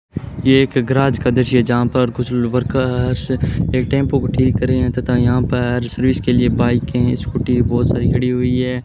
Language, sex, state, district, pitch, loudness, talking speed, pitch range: Hindi, male, Rajasthan, Bikaner, 125 Hz, -16 LUFS, 205 wpm, 125-130 Hz